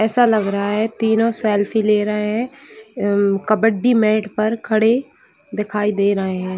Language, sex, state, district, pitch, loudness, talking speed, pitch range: Hindi, female, Chhattisgarh, Bilaspur, 215 Hz, -18 LUFS, 175 wpm, 205-225 Hz